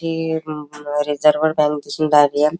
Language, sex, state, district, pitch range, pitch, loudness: Marathi, male, Maharashtra, Chandrapur, 150-155 Hz, 150 Hz, -18 LUFS